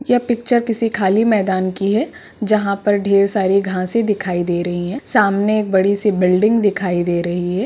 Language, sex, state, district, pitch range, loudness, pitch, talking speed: Hindi, female, Bihar, Purnia, 185-215 Hz, -17 LUFS, 200 Hz, 195 wpm